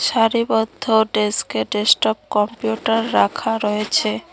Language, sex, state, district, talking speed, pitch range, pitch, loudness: Bengali, female, West Bengal, Cooch Behar, 85 wpm, 210-225 Hz, 220 Hz, -19 LUFS